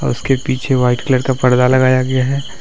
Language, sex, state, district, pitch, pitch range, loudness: Hindi, male, Jharkhand, Deoghar, 130 Hz, 125-130 Hz, -14 LUFS